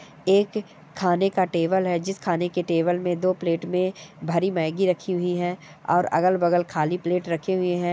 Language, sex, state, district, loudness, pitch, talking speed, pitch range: Hindi, female, Chhattisgarh, Kabirdham, -24 LUFS, 175 Hz, 190 wpm, 170-185 Hz